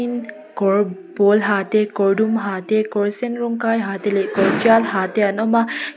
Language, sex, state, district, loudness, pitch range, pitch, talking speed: Mizo, female, Mizoram, Aizawl, -18 LUFS, 200-225 Hz, 210 Hz, 220 wpm